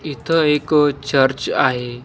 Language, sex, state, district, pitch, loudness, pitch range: Marathi, male, Maharashtra, Washim, 140 Hz, -17 LUFS, 130-150 Hz